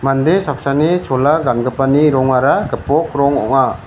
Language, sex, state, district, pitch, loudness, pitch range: Garo, male, Meghalaya, West Garo Hills, 140 Hz, -14 LUFS, 135-150 Hz